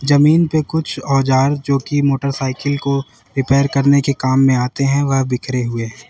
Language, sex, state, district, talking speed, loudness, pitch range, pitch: Hindi, male, Uttar Pradesh, Lalitpur, 185 wpm, -16 LUFS, 130-140 Hz, 135 Hz